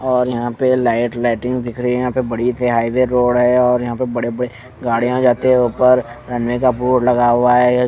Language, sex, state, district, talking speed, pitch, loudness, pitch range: Hindi, male, Punjab, Fazilka, 235 wpm, 125 Hz, -16 LUFS, 120-125 Hz